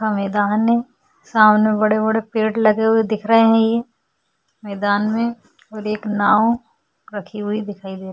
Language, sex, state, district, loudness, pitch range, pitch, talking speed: Hindi, female, Goa, North and South Goa, -18 LUFS, 210-225 Hz, 215 Hz, 160 wpm